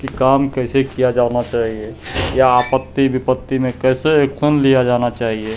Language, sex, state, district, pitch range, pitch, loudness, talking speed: Hindi, male, Bihar, Katihar, 120-135 Hz, 130 Hz, -16 LUFS, 160 wpm